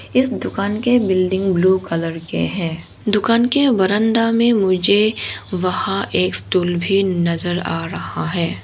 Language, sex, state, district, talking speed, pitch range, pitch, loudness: Hindi, female, Arunachal Pradesh, Longding, 145 wpm, 175-215 Hz, 190 Hz, -17 LUFS